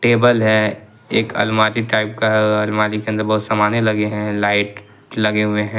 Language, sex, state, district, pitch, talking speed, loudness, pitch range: Hindi, male, Jharkhand, Ranchi, 105 Hz, 175 wpm, -17 LUFS, 105-110 Hz